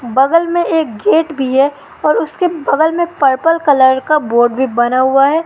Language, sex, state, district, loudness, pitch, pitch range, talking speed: Hindi, female, Madhya Pradesh, Katni, -13 LUFS, 280 Hz, 260-325 Hz, 200 wpm